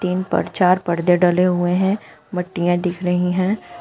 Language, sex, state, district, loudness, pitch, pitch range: Hindi, female, Uttar Pradesh, Shamli, -19 LUFS, 180 Hz, 175-185 Hz